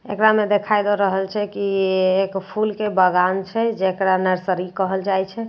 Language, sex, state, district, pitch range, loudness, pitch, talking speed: Maithili, female, Bihar, Katihar, 190-210 Hz, -20 LUFS, 195 Hz, 220 wpm